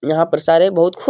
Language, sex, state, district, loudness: Hindi, male, Bihar, Jamui, -14 LUFS